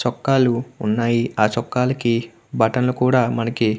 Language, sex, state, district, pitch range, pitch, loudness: Telugu, male, Andhra Pradesh, Krishna, 115-125 Hz, 120 Hz, -19 LUFS